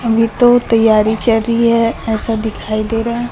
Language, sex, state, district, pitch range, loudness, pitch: Hindi, female, Chhattisgarh, Raipur, 220-235 Hz, -14 LUFS, 225 Hz